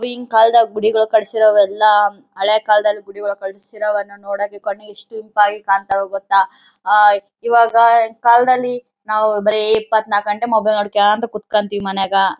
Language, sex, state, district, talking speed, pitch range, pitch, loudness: Kannada, female, Karnataka, Bellary, 135 wpm, 205-220 Hz, 210 Hz, -15 LUFS